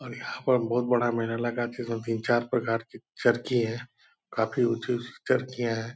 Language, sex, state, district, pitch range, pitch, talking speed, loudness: Hindi, male, Bihar, Purnia, 115-125 Hz, 120 Hz, 180 wpm, -28 LUFS